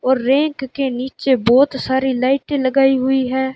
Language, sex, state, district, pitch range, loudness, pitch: Hindi, male, Rajasthan, Bikaner, 260-270 Hz, -17 LUFS, 265 Hz